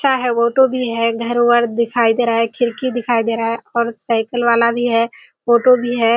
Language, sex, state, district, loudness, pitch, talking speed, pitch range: Hindi, female, Bihar, Kishanganj, -16 LUFS, 235 Hz, 225 wpm, 230-240 Hz